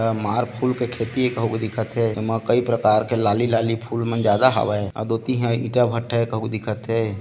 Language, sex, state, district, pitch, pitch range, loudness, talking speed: Hindi, male, Chhattisgarh, Bilaspur, 115 Hz, 110-120 Hz, -21 LUFS, 240 wpm